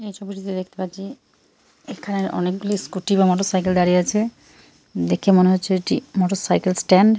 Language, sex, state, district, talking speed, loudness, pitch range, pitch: Bengali, female, West Bengal, Purulia, 150 wpm, -20 LUFS, 185-200 Hz, 190 Hz